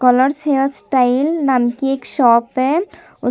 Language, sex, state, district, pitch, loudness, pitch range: Hindi, female, Chhattisgarh, Sukma, 270 Hz, -16 LUFS, 250-290 Hz